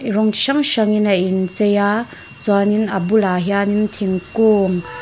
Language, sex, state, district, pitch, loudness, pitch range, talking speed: Mizo, female, Mizoram, Aizawl, 205 Hz, -16 LUFS, 195-215 Hz, 145 wpm